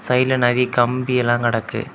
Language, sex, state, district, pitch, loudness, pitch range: Tamil, male, Tamil Nadu, Kanyakumari, 125 Hz, -18 LUFS, 120-125 Hz